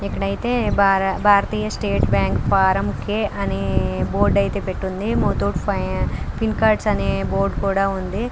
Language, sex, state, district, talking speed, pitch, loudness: Telugu, female, Andhra Pradesh, Krishna, 125 wpm, 190 Hz, -20 LUFS